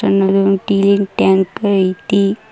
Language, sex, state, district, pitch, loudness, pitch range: Kannada, female, Karnataka, Koppal, 195 Hz, -14 LUFS, 195-200 Hz